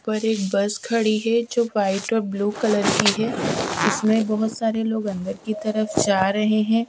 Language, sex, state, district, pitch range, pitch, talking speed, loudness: Hindi, female, Bihar, Kaimur, 205-225 Hz, 215 Hz, 190 wpm, -21 LUFS